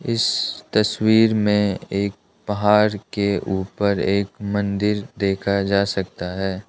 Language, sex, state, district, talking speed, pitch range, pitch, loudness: Hindi, male, Arunachal Pradesh, Lower Dibang Valley, 115 wpm, 100-105 Hz, 100 Hz, -21 LUFS